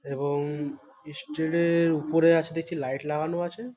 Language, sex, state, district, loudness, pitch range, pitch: Bengali, male, West Bengal, Malda, -26 LUFS, 145-165 Hz, 160 Hz